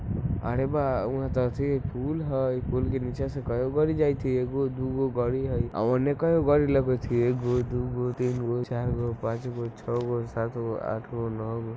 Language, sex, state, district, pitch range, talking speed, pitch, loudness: Maithili, male, Bihar, Muzaffarpur, 120-135 Hz, 220 wpm, 125 Hz, -28 LUFS